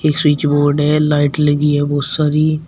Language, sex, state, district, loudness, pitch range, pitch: Hindi, male, Uttar Pradesh, Shamli, -14 LUFS, 145-150 Hz, 150 Hz